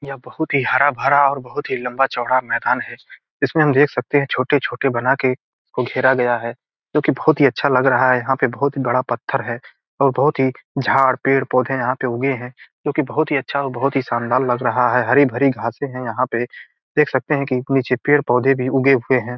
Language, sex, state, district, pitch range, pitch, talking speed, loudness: Hindi, male, Bihar, Gopalganj, 125-140 Hz, 135 Hz, 215 wpm, -18 LUFS